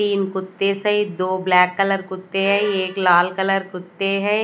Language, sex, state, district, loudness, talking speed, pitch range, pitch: Hindi, female, Odisha, Nuapada, -19 LUFS, 175 wpm, 185-195 Hz, 195 Hz